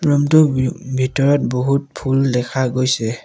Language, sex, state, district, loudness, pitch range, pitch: Assamese, male, Assam, Sonitpur, -17 LUFS, 130-140 Hz, 130 Hz